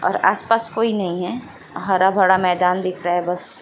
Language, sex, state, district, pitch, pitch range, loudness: Hindi, female, Bihar, Jamui, 185 Hz, 180-205 Hz, -19 LUFS